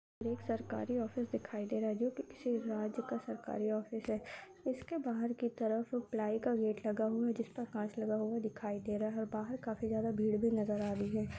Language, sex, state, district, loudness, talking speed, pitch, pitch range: Hindi, male, Uttar Pradesh, Hamirpur, -38 LUFS, 210 wpm, 225 Hz, 215-235 Hz